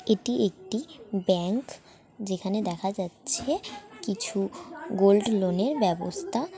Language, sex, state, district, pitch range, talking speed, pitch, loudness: Bengali, female, West Bengal, Dakshin Dinajpur, 190-250 Hz, 100 wpm, 210 Hz, -28 LUFS